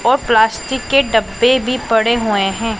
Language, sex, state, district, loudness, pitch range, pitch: Hindi, female, Punjab, Pathankot, -15 LUFS, 220-255 Hz, 225 Hz